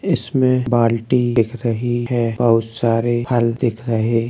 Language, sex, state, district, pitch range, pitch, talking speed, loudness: Hindi, male, Uttar Pradesh, Hamirpur, 115-120 Hz, 120 Hz, 155 wpm, -18 LUFS